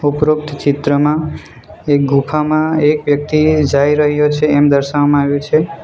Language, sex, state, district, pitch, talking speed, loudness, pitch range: Gujarati, male, Gujarat, Valsad, 150 Hz, 135 wpm, -13 LUFS, 145-155 Hz